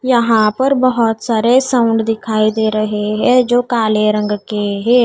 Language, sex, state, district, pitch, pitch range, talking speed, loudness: Hindi, female, Odisha, Nuapada, 225 Hz, 215-245 Hz, 165 wpm, -14 LUFS